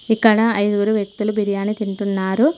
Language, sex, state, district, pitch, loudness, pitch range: Telugu, female, Telangana, Mahabubabad, 210 Hz, -19 LUFS, 200-225 Hz